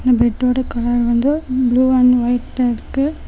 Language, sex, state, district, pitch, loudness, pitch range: Tamil, female, Tamil Nadu, Namakkal, 250 Hz, -16 LUFS, 240-260 Hz